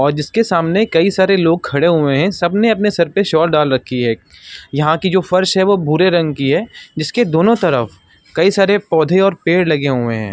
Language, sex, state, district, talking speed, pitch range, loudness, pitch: Hindi, male, Uttar Pradesh, Muzaffarnagar, 220 wpm, 145-190 Hz, -14 LUFS, 170 Hz